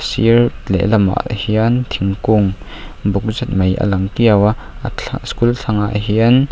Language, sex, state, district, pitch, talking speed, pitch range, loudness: Mizo, male, Mizoram, Aizawl, 105 Hz, 145 wpm, 100-115 Hz, -16 LUFS